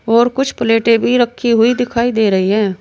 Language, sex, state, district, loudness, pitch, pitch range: Hindi, female, Uttar Pradesh, Saharanpur, -14 LUFS, 230 Hz, 225-240 Hz